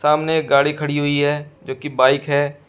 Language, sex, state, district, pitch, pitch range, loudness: Hindi, male, Uttar Pradesh, Shamli, 145 Hz, 140-150 Hz, -18 LUFS